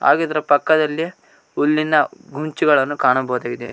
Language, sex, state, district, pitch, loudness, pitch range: Kannada, male, Karnataka, Koppal, 150 Hz, -18 LUFS, 130-155 Hz